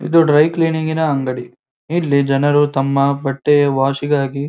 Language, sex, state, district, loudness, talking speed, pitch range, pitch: Kannada, male, Karnataka, Dharwad, -16 LUFS, 145 wpm, 135-150 Hz, 140 Hz